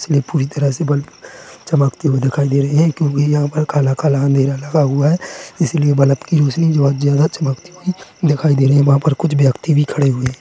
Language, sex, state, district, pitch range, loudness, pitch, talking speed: Hindi, male, Chhattisgarh, Korba, 140-155 Hz, -15 LUFS, 145 Hz, 230 wpm